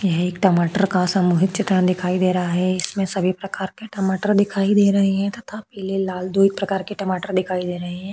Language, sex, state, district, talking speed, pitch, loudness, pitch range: Hindi, female, Maharashtra, Chandrapur, 230 wpm, 190 Hz, -20 LUFS, 185-195 Hz